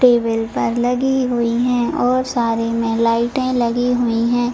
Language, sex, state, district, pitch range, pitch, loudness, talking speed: Hindi, female, Chhattisgarh, Bilaspur, 230-245 Hz, 240 Hz, -18 LUFS, 160 wpm